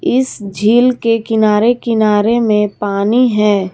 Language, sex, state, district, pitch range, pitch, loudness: Hindi, female, Jharkhand, Garhwa, 210-235 Hz, 220 Hz, -13 LUFS